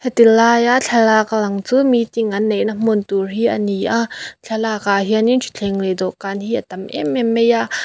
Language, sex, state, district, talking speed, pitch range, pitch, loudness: Mizo, female, Mizoram, Aizawl, 200 wpm, 200-235 Hz, 220 Hz, -16 LUFS